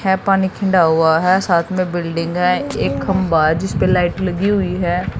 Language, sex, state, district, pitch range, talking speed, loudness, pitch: Hindi, female, Haryana, Jhajjar, 170-190 Hz, 195 wpm, -16 LUFS, 180 Hz